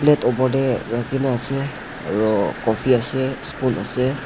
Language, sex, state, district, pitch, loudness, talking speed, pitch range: Nagamese, male, Nagaland, Dimapur, 130 Hz, -21 LUFS, 155 wpm, 120-135 Hz